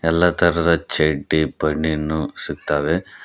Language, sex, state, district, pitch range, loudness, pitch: Kannada, male, Karnataka, Koppal, 75-85 Hz, -20 LUFS, 80 Hz